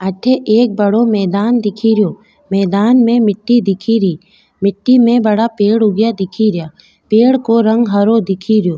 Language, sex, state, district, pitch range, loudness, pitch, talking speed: Rajasthani, female, Rajasthan, Nagaur, 195-230 Hz, -12 LUFS, 215 Hz, 145 wpm